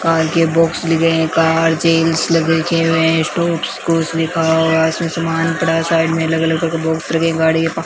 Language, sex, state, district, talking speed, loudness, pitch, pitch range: Hindi, male, Rajasthan, Bikaner, 190 wpm, -15 LUFS, 165 Hz, 160-165 Hz